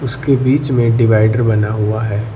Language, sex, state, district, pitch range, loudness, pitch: Hindi, male, Uttar Pradesh, Lucknow, 110-130 Hz, -14 LUFS, 115 Hz